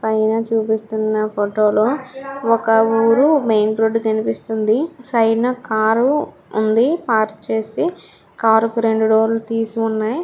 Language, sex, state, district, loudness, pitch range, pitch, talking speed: Telugu, female, Andhra Pradesh, Srikakulam, -17 LUFS, 220-230 Hz, 225 Hz, 130 wpm